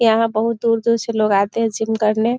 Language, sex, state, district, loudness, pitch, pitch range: Hindi, female, Bihar, Muzaffarpur, -18 LUFS, 225 Hz, 220-230 Hz